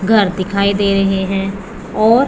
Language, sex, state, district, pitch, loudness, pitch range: Hindi, female, Punjab, Pathankot, 200 Hz, -15 LUFS, 195-215 Hz